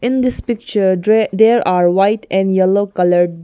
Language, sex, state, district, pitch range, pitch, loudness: English, female, Arunachal Pradesh, Longding, 185-220 Hz, 195 Hz, -14 LUFS